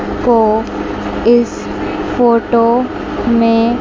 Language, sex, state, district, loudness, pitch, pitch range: Hindi, female, Chandigarh, Chandigarh, -13 LUFS, 235 Hz, 230-240 Hz